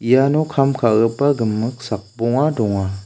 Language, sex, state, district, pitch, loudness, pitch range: Garo, male, Meghalaya, South Garo Hills, 115 Hz, -18 LUFS, 110-135 Hz